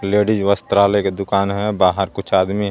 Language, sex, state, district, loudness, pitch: Hindi, male, Jharkhand, Garhwa, -17 LUFS, 100 Hz